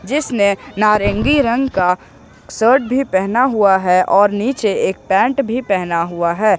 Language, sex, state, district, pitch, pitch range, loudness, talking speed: Hindi, male, Jharkhand, Ranchi, 210 Hz, 190-255 Hz, -15 LUFS, 155 wpm